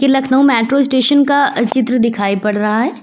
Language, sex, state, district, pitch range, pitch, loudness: Hindi, female, Uttar Pradesh, Lucknow, 230-275 Hz, 260 Hz, -13 LUFS